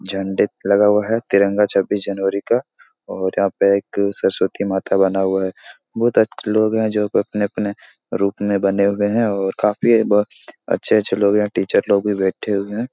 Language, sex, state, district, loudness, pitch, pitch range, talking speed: Hindi, male, Bihar, Supaul, -18 LUFS, 100 Hz, 100-105 Hz, 175 wpm